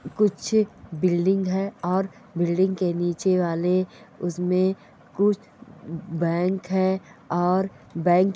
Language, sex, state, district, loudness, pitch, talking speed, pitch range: Hindi, female, Bihar, Bhagalpur, -24 LUFS, 185 Hz, 110 wpm, 175-195 Hz